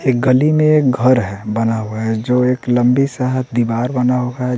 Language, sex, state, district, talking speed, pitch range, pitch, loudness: Hindi, male, Bihar, West Champaran, 225 wpm, 120-130 Hz, 125 Hz, -15 LUFS